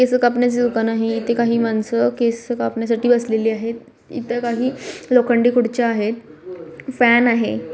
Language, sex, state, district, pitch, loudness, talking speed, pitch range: Marathi, female, Maharashtra, Nagpur, 235 Hz, -18 LUFS, 140 wpm, 225-245 Hz